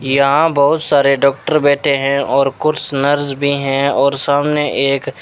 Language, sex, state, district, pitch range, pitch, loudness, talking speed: Hindi, male, Rajasthan, Bikaner, 140-145 Hz, 140 Hz, -14 LUFS, 160 wpm